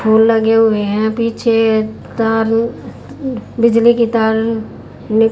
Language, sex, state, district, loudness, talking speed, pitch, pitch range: Hindi, female, Haryana, Jhajjar, -14 LUFS, 125 wpm, 225 Hz, 220-230 Hz